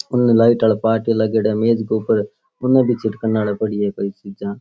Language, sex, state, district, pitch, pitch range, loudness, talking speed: Rajasthani, male, Rajasthan, Churu, 110 Hz, 105-115 Hz, -18 LUFS, 220 wpm